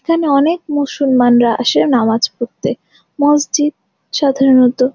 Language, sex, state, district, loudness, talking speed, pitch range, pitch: Bengali, female, West Bengal, Jhargram, -14 LUFS, 95 wpm, 245-295 Hz, 275 Hz